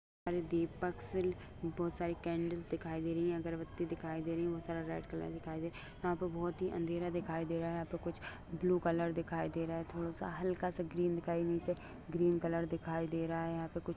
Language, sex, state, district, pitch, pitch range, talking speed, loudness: Hindi, male, Bihar, Begusarai, 170 Hz, 165-175 Hz, 240 wpm, -39 LUFS